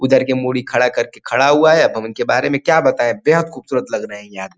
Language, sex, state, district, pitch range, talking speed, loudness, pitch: Hindi, male, Uttar Pradesh, Ghazipur, 110-135 Hz, 275 wpm, -15 LUFS, 130 Hz